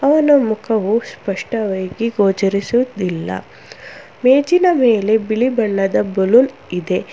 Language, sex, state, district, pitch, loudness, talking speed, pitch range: Kannada, female, Karnataka, Bangalore, 220 Hz, -16 LUFS, 85 wpm, 195-250 Hz